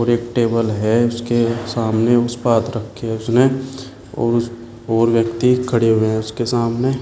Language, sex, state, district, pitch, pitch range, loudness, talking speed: Hindi, male, Uttar Pradesh, Shamli, 115 Hz, 115-120 Hz, -18 LUFS, 170 wpm